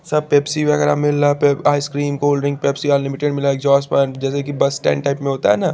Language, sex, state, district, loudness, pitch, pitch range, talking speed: Hindi, male, Chandigarh, Chandigarh, -17 LUFS, 145 Hz, 140-145 Hz, 220 wpm